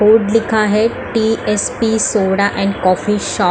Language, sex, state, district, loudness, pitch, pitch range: Hindi, female, Maharashtra, Mumbai Suburban, -15 LUFS, 210 Hz, 200-225 Hz